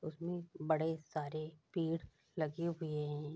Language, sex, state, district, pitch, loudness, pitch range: Hindi, female, Bihar, Saharsa, 155 Hz, -40 LUFS, 150-165 Hz